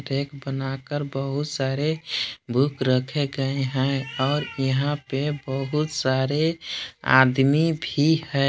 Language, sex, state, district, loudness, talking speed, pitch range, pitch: Hindi, male, Jharkhand, Palamu, -24 LUFS, 115 wpm, 135-150 Hz, 135 Hz